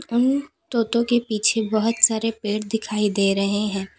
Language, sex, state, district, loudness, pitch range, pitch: Hindi, female, Uttar Pradesh, Lalitpur, -21 LUFS, 210-235 Hz, 220 Hz